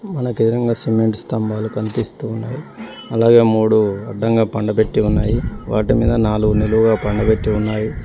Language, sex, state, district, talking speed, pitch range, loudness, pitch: Telugu, male, Telangana, Mahabubabad, 125 wpm, 110-115 Hz, -17 LUFS, 110 Hz